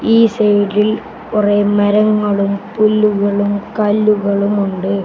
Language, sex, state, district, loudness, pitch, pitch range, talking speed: Malayalam, male, Kerala, Kasaragod, -14 LUFS, 205 Hz, 200-215 Hz, 85 wpm